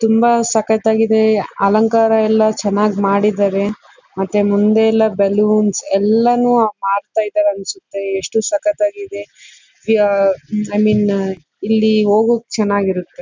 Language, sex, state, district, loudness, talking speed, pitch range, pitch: Kannada, female, Karnataka, Bellary, -15 LUFS, 95 wpm, 200-220 Hz, 215 Hz